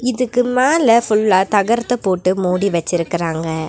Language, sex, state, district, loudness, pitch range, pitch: Tamil, female, Tamil Nadu, Nilgiris, -16 LUFS, 175-245 Hz, 200 Hz